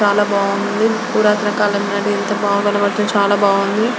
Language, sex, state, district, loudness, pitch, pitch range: Telugu, female, Andhra Pradesh, Guntur, -16 LUFS, 205 Hz, 200-210 Hz